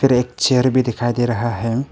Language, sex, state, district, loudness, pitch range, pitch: Hindi, male, Arunachal Pradesh, Papum Pare, -18 LUFS, 120-130 Hz, 125 Hz